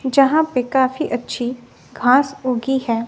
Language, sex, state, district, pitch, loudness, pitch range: Hindi, female, Bihar, West Champaran, 260 Hz, -18 LUFS, 245-270 Hz